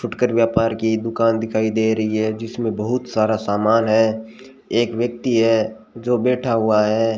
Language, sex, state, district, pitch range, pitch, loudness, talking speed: Hindi, male, Rajasthan, Bikaner, 110-120 Hz, 115 Hz, -19 LUFS, 165 wpm